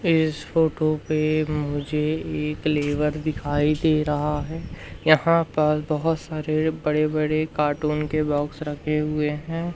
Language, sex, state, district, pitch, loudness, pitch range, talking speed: Hindi, male, Madhya Pradesh, Umaria, 155 Hz, -23 LUFS, 150-155 Hz, 135 wpm